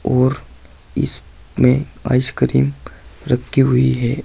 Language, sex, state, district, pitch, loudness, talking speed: Hindi, male, Uttar Pradesh, Saharanpur, 125 Hz, -16 LUFS, 85 wpm